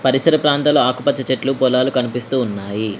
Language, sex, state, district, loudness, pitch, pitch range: Telugu, female, Telangana, Mahabubabad, -17 LUFS, 130 Hz, 125-140 Hz